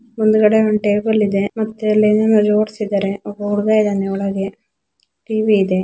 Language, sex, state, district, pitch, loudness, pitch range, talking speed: Kannada, female, Karnataka, Bijapur, 210 Hz, -16 LUFS, 200-215 Hz, 135 wpm